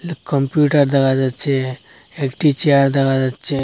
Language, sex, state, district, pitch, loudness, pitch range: Bengali, male, Assam, Hailakandi, 140 Hz, -17 LUFS, 135-145 Hz